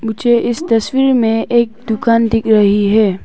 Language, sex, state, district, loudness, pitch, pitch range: Hindi, female, Arunachal Pradesh, Papum Pare, -13 LUFS, 225 Hz, 220-235 Hz